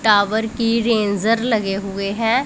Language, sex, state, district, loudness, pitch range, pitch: Hindi, female, Punjab, Pathankot, -19 LUFS, 200-230 Hz, 220 Hz